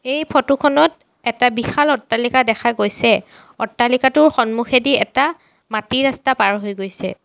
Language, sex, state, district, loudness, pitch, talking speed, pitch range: Assamese, female, Assam, Sonitpur, -17 LUFS, 250 Hz, 130 wpm, 225-275 Hz